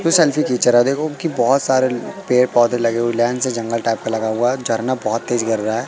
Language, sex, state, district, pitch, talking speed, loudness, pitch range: Hindi, male, Madhya Pradesh, Katni, 120 Hz, 265 wpm, -18 LUFS, 115-130 Hz